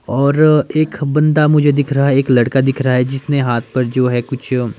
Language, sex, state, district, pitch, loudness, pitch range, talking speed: Hindi, male, Himachal Pradesh, Shimla, 135 Hz, -14 LUFS, 125-145 Hz, 225 wpm